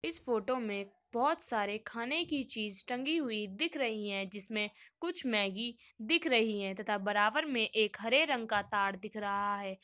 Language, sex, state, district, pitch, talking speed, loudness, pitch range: Hindi, female, Uttar Pradesh, Muzaffarnagar, 220 Hz, 185 wpm, -33 LUFS, 205-255 Hz